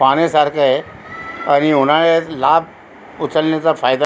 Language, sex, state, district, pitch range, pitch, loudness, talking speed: Marathi, female, Maharashtra, Aurangabad, 145-160 Hz, 150 Hz, -15 LUFS, 105 wpm